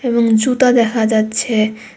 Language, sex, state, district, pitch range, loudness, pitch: Bengali, female, Tripura, West Tripura, 220-240 Hz, -14 LUFS, 225 Hz